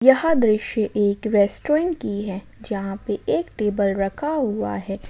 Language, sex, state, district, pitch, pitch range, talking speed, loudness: Hindi, female, Jharkhand, Ranchi, 205 Hz, 195-235 Hz, 155 wpm, -22 LUFS